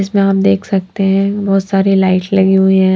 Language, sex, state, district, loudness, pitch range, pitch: Hindi, female, Haryana, Charkhi Dadri, -12 LUFS, 190-195 Hz, 195 Hz